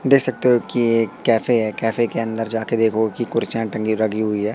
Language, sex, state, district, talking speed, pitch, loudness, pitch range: Hindi, male, Madhya Pradesh, Katni, 250 wpm, 115 Hz, -18 LUFS, 110-120 Hz